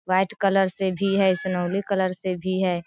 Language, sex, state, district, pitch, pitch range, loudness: Hindi, female, Bihar, Sitamarhi, 190 Hz, 185-195 Hz, -23 LUFS